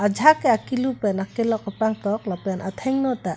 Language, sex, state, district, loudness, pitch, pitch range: Karbi, female, Assam, Karbi Anglong, -22 LUFS, 220 Hz, 200-255 Hz